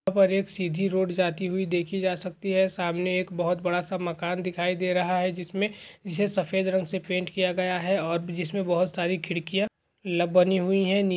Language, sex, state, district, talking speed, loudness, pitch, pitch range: Hindi, male, Bihar, Begusarai, 220 wpm, -27 LUFS, 185 Hz, 180-190 Hz